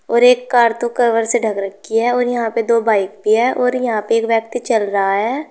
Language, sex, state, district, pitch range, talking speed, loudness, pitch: Hindi, female, Uttar Pradesh, Saharanpur, 220-245 Hz, 260 wpm, -16 LUFS, 230 Hz